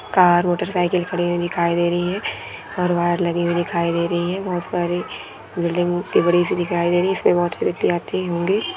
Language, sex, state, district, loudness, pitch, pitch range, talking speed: Hindi, female, Goa, North and South Goa, -20 LUFS, 175 Hz, 175-180 Hz, 220 wpm